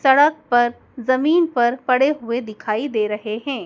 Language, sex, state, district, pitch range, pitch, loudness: Hindi, male, Madhya Pradesh, Dhar, 235-275 Hz, 250 Hz, -19 LUFS